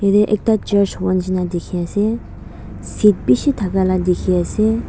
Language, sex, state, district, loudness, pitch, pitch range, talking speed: Nagamese, female, Nagaland, Dimapur, -17 LUFS, 195 Hz, 185-210 Hz, 160 wpm